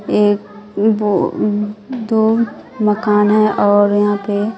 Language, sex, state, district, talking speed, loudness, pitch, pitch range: Hindi, female, Bihar, West Champaran, 105 wpm, -15 LUFS, 210 Hz, 205-215 Hz